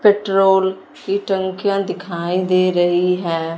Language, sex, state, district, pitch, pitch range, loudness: Hindi, male, Punjab, Fazilka, 185 Hz, 175-195 Hz, -18 LUFS